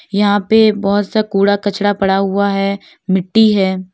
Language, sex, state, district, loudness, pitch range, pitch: Hindi, female, Uttar Pradesh, Lalitpur, -14 LUFS, 195-205 Hz, 200 Hz